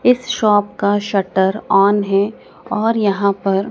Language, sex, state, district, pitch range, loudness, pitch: Hindi, female, Madhya Pradesh, Dhar, 195-215 Hz, -16 LUFS, 205 Hz